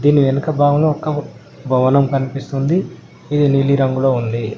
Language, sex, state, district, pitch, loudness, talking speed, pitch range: Telugu, male, Telangana, Mahabubabad, 140 Hz, -16 LUFS, 130 wpm, 135-145 Hz